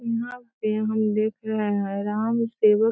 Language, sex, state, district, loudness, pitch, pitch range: Hindi, female, Bihar, Sitamarhi, -24 LUFS, 220 Hz, 215-230 Hz